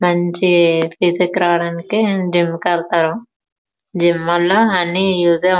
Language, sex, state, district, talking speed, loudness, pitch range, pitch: Telugu, female, Andhra Pradesh, Srikakulam, 120 wpm, -15 LUFS, 170-185 Hz, 175 Hz